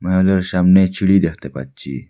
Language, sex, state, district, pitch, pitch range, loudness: Bengali, male, Assam, Hailakandi, 90 Hz, 70-95 Hz, -15 LUFS